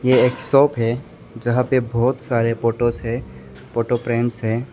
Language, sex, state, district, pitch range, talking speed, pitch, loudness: Hindi, male, Arunachal Pradesh, Lower Dibang Valley, 115-125 Hz, 165 wpm, 120 Hz, -20 LUFS